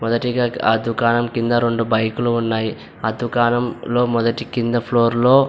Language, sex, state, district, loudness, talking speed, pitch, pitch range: Telugu, male, Andhra Pradesh, Anantapur, -19 LUFS, 165 wpm, 120 Hz, 115-120 Hz